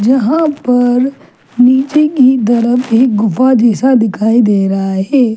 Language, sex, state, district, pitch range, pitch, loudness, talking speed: Hindi, female, Chhattisgarh, Jashpur, 220-260 Hz, 245 Hz, -11 LUFS, 135 wpm